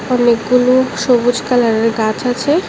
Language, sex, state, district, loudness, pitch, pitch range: Bengali, male, Tripura, West Tripura, -14 LUFS, 245 Hz, 230-250 Hz